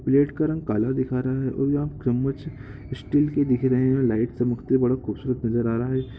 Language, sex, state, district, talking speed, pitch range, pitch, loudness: Hindi, male, Bihar, Gopalganj, 240 wpm, 125-135 Hz, 130 Hz, -24 LUFS